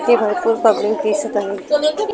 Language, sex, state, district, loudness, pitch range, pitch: Marathi, female, Maharashtra, Mumbai Suburban, -17 LUFS, 210-270 Hz, 225 Hz